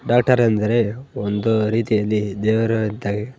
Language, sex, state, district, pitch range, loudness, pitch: Kannada, male, Karnataka, Bellary, 105-115 Hz, -19 LUFS, 110 Hz